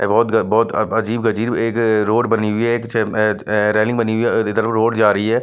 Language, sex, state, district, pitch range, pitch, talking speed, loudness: Hindi, male, Chandigarh, Chandigarh, 110-115 Hz, 110 Hz, 210 wpm, -17 LUFS